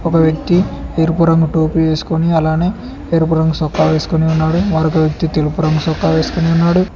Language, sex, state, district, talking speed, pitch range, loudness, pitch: Telugu, male, Telangana, Hyderabad, 165 wpm, 160-165 Hz, -14 LUFS, 160 Hz